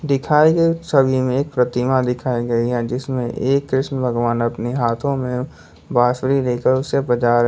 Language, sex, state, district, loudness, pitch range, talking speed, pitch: Hindi, male, Jharkhand, Palamu, -19 LUFS, 120-135 Hz, 170 wpm, 130 Hz